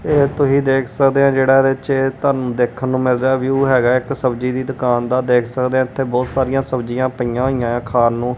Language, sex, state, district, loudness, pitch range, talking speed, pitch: Punjabi, male, Punjab, Kapurthala, -17 LUFS, 125-135 Hz, 235 wpm, 130 Hz